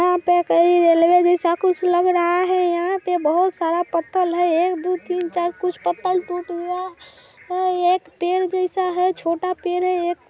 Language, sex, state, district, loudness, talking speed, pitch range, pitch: Hindi, female, Bihar, Vaishali, -19 LUFS, 185 wpm, 345-365 Hz, 355 Hz